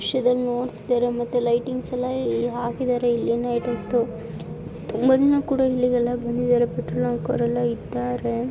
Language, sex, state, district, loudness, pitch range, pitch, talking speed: Kannada, female, Karnataka, Chamarajanagar, -23 LUFS, 235-250 Hz, 240 Hz, 115 wpm